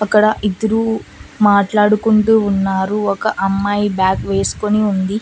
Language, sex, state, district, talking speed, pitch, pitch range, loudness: Telugu, female, Andhra Pradesh, Annamaya, 105 wpm, 210 Hz, 195-215 Hz, -15 LUFS